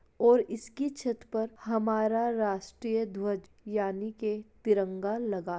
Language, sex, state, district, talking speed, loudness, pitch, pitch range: Hindi, female, Uttar Pradesh, Jalaun, 120 wpm, -31 LUFS, 220 Hz, 205-225 Hz